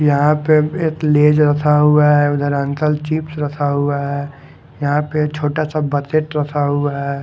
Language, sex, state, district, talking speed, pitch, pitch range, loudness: Hindi, male, Haryana, Charkhi Dadri, 175 wpm, 150 Hz, 145-150 Hz, -16 LUFS